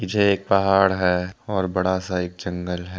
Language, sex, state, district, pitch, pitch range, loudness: Hindi, male, Jharkhand, Deoghar, 95 Hz, 90-95 Hz, -22 LUFS